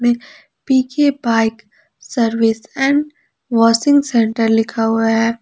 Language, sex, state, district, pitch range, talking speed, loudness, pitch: Hindi, female, Jharkhand, Palamu, 225-270 Hz, 120 wpm, -16 LUFS, 230 Hz